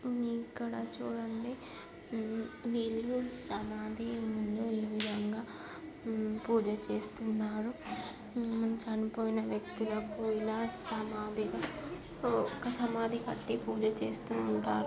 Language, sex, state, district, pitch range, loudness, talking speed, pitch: Telugu, female, Andhra Pradesh, Srikakulam, 215-230 Hz, -36 LUFS, 90 wpm, 220 Hz